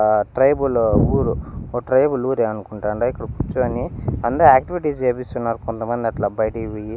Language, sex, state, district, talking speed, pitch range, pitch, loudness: Telugu, male, Andhra Pradesh, Annamaya, 130 wpm, 110-130 Hz, 120 Hz, -20 LUFS